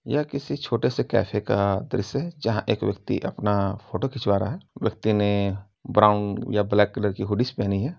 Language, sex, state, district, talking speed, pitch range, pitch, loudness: Hindi, male, Uttar Pradesh, Gorakhpur, 195 wpm, 100-125 Hz, 105 Hz, -24 LUFS